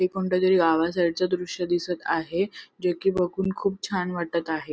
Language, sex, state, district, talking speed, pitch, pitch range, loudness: Marathi, female, Maharashtra, Sindhudurg, 175 wpm, 180 Hz, 170-185 Hz, -25 LUFS